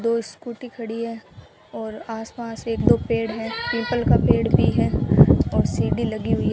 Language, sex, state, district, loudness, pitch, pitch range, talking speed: Hindi, female, Rajasthan, Bikaner, -21 LUFS, 230 Hz, 225-235 Hz, 185 wpm